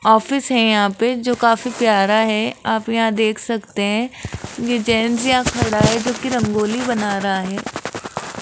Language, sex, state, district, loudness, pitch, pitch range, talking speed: Hindi, female, Rajasthan, Jaipur, -18 LUFS, 230 Hz, 215-245 Hz, 165 wpm